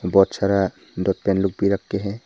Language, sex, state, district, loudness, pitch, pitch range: Hindi, male, Arunachal Pradesh, Papum Pare, -21 LUFS, 100 Hz, 95-100 Hz